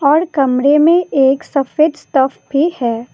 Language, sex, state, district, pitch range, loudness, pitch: Hindi, female, Assam, Kamrup Metropolitan, 265-310 Hz, -14 LUFS, 280 Hz